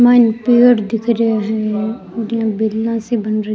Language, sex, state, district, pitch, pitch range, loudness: Rajasthani, female, Rajasthan, Churu, 225 Hz, 215-235 Hz, -15 LUFS